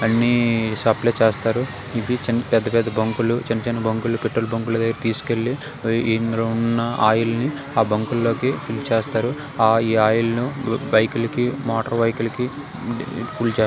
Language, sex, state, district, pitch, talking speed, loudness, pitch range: Telugu, male, Telangana, Karimnagar, 115 Hz, 145 wpm, -21 LUFS, 115-120 Hz